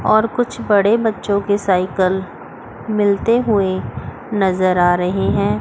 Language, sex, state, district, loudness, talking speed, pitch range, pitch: Hindi, female, Chandigarh, Chandigarh, -17 LUFS, 130 wpm, 185-215 Hz, 200 Hz